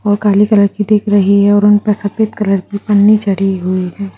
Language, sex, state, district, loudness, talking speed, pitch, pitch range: Hindi, female, Bihar, Jahanabad, -12 LUFS, 230 wpm, 205 Hz, 200-210 Hz